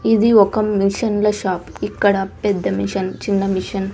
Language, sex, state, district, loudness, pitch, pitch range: Telugu, female, Andhra Pradesh, Sri Satya Sai, -18 LUFS, 200 Hz, 190-210 Hz